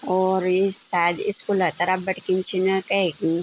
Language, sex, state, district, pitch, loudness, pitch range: Garhwali, female, Uttarakhand, Tehri Garhwal, 185 Hz, -21 LUFS, 180-190 Hz